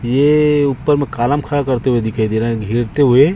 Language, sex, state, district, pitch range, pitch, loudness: Hindi, male, Chhattisgarh, Raipur, 120-145 Hz, 135 Hz, -15 LUFS